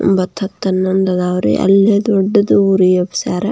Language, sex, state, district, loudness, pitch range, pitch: Kannada, female, Karnataka, Belgaum, -14 LUFS, 185-195 Hz, 190 Hz